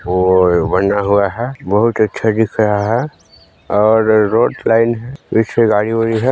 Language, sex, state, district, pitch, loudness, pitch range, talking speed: Hindi, male, Chhattisgarh, Balrampur, 110 Hz, -14 LUFS, 100-115 Hz, 170 wpm